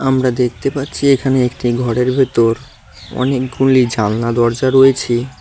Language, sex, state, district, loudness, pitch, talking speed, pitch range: Bengali, male, West Bengal, Cooch Behar, -15 LUFS, 125 Hz, 120 wpm, 120-135 Hz